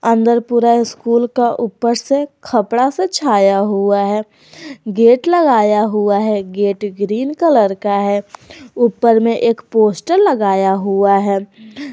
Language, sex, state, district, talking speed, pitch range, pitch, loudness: Hindi, female, Jharkhand, Garhwa, 135 wpm, 205-240 Hz, 225 Hz, -14 LUFS